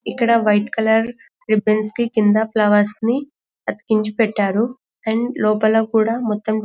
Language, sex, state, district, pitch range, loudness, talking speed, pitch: Telugu, female, Telangana, Karimnagar, 215-230 Hz, -18 LUFS, 135 wpm, 220 Hz